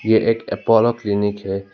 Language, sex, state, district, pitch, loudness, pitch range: Hindi, male, Assam, Hailakandi, 105 Hz, -18 LUFS, 100-115 Hz